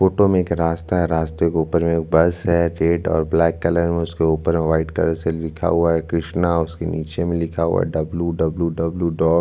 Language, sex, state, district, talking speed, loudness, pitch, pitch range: Hindi, male, Chhattisgarh, Bastar, 230 wpm, -20 LUFS, 85 Hz, 80-85 Hz